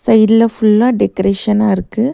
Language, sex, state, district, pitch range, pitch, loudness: Tamil, female, Tamil Nadu, Nilgiris, 210-230 Hz, 215 Hz, -12 LUFS